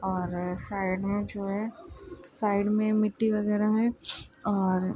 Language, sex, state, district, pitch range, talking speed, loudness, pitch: Hindi, female, Bihar, Saharsa, 190-215 Hz, 135 wpm, -29 LUFS, 205 Hz